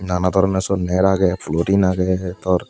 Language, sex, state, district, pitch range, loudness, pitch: Chakma, male, Tripura, Unakoti, 90-95 Hz, -18 LUFS, 95 Hz